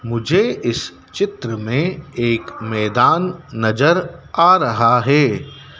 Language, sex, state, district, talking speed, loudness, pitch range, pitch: Hindi, male, Madhya Pradesh, Dhar, 105 wpm, -17 LUFS, 115-160 Hz, 135 Hz